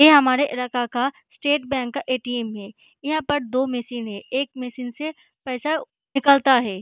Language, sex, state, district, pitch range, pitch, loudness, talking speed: Hindi, female, Bihar, Begusarai, 245-285 Hz, 255 Hz, -22 LUFS, 175 wpm